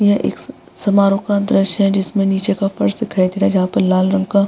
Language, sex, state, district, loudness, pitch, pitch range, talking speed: Hindi, female, Bihar, Vaishali, -16 LUFS, 195 Hz, 195-200 Hz, 265 wpm